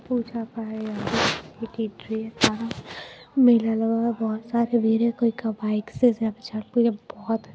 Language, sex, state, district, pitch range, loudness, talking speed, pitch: Hindi, female, Bihar, Muzaffarpur, 220-235 Hz, -24 LUFS, 135 wpm, 225 Hz